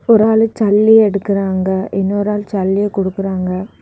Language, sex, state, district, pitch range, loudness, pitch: Tamil, female, Tamil Nadu, Kanyakumari, 195-210 Hz, -14 LUFS, 200 Hz